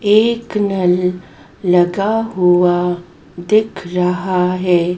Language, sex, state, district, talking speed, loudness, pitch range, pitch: Hindi, male, Madhya Pradesh, Dhar, 85 wpm, -15 LUFS, 180-205 Hz, 180 Hz